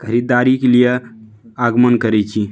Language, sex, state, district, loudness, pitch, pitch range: Maithili, male, Bihar, Madhepura, -14 LUFS, 120 Hz, 110-125 Hz